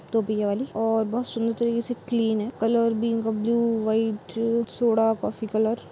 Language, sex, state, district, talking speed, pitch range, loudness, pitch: Hindi, female, Maharashtra, Dhule, 205 wpm, 220-235 Hz, -25 LUFS, 225 Hz